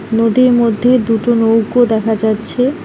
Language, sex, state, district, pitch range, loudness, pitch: Bengali, female, West Bengal, Alipurduar, 225-245 Hz, -13 LUFS, 230 Hz